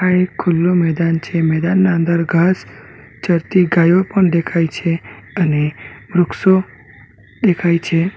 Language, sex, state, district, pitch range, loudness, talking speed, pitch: Gujarati, male, Gujarat, Valsad, 160-180 Hz, -16 LUFS, 125 wpm, 170 Hz